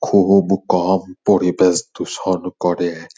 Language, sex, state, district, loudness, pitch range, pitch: Bengali, male, West Bengal, Purulia, -17 LUFS, 90-95 Hz, 90 Hz